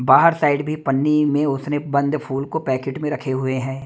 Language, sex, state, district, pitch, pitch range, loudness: Hindi, male, Delhi, New Delhi, 140 Hz, 135-150 Hz, -20 LUFS